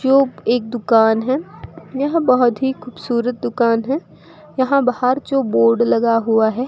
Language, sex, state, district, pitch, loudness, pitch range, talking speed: Hindi, female, Rajasthan, Bikaner, 245 Hz, -17 LUFS, 225-265 Hz, 155 wpm